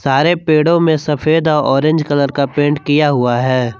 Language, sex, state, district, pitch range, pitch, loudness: Hindi, male, Jharkhand, Palamu, 135-155 Hz, 150 Hz, -14 LUFS